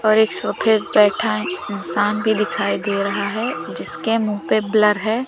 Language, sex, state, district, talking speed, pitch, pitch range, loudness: Hindi, female, Uttar Pradesh, Lalitpur, 180 wpm, 210 Hz, 205-220 Hz, -19 LUFS